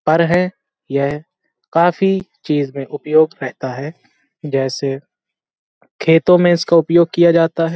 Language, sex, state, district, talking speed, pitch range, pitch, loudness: Hindi, male, Uttar Pradesh, Hamirpur, 130 wpm, 145-175 Hz, 165 Hz, -16 LUFS